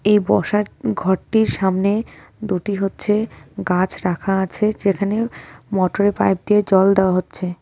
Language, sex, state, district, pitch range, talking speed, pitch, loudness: Bengali, female, West Bengal, Cooch Behar, 190-210 Hz, 125 wpm, 195 Hz, -19 LUFS